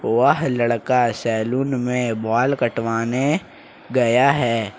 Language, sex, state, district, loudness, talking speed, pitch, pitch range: Hindi, male, Jharkhand, Ranchi, -20 LUFS, 100 wpm, 120 Hz, 115-130 Hz